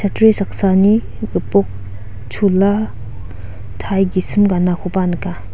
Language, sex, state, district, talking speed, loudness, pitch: Garo, female, Meghalaya, West Garo Hills, 75 wpm, -16 LUFS, 180 Hz